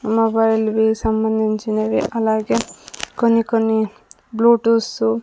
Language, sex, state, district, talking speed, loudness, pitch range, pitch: Telugu, female, Andhra Pradesh, Sri Satya Sai, 90 wpm, -18 LUFS, 220-225 Hz, 220 Hz